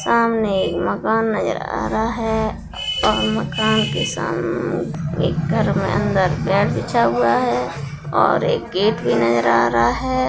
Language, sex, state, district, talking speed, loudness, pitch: Hindi, female, Bihar, Darbhanga, 150 wpm, -19 LUFS, 130 Hz